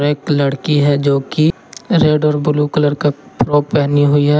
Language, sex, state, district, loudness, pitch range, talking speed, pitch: Hindi, male, Jharkhand, Garhwa, -14 LUFS, 145-150 Hz, 190 wpm, 145 Hz